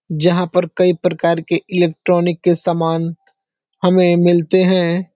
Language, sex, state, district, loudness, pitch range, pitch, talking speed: Hindi, male, Uttar Pradesh, Deoria, -15 LUFS, 170-180 Hz, 175 Hz, 130 wpm